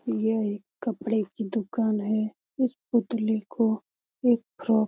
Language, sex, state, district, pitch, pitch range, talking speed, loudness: Hindi, female, Bihar, Lakhisarai, 220 Hz, 215-235 Hz, 150 wpm, -28 LUFS